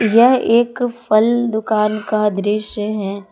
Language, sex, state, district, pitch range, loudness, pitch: Hindi, female, Jharkhand, Ranchi, 210-235 Hz, -16 LUFS, 215 Hz